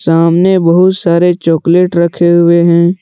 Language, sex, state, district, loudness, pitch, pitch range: Hindi, male, Jharkhand, Deoghar, -9 LUFS, 170 Hz, 170-180 Hz